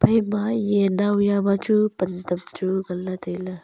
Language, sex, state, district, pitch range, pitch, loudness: Wancho, female, Arunachal Pradesh, Longding, 185-205 Hz, 195 Hz, -23 LUFS